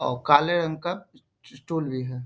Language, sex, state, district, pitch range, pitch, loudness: Hindi, male, Bihar, Bhagalpur, 130-170 Hz, 150 Hz, -24 LUFS